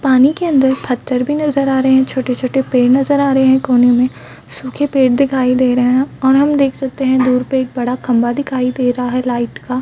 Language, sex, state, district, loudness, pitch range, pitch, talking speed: Hindi, female, Chhattisgarh, Raigarh, -14 LUFS, 250-270 Hz, 260 Hz, 245 wpm